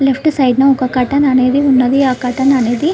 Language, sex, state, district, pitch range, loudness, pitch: Telugu, female, Andhra Pradesh, Krishna, 255-275 Hz, -12 LUFS, 265 Hz